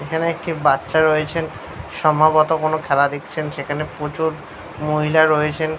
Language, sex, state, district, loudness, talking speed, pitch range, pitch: Bengali, male, West Bengal, Paschim Medinipur, -19 LUFS, 125 wpm, 150-155 Hz, 155 Hz